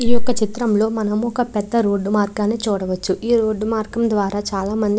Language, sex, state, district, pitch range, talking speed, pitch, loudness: Telugu, female, Andhra Pradesh, Krishna, 205-230 Hz, 180 wpm, 215 Hz, -20 LUFS